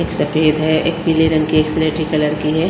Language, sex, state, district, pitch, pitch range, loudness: Hindi, female, Himachal Pradesh, Shimla, 155 Hz, 155-160 Hz, -16 LUFS